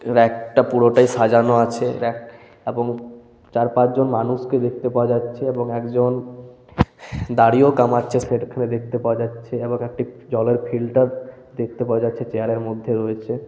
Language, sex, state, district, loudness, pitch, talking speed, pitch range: Bengali, male, West Bengal, Paschim Medinipur, -20 LUFS, 120 Hz, 140 wpm, 115-125 Hz